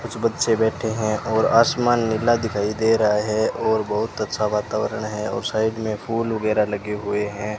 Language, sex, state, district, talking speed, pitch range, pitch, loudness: Hindi, male, Rajasthan, Bikaner, 190 wpm, 105-115 Hz, 110 Hz, -21 LUFS